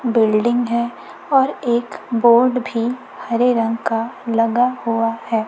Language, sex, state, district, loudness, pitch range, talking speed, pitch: Hindi, female, Chhattisgarh, Raipur, -18 LUFS, 230-245 Hz, 130 wpm, 235 Hz